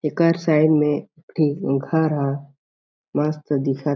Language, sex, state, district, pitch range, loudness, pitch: Chhattisgarhi, male, Chhattisgarh, Jashpur, 145-155 Hz, -21 LUFS, 150 Hz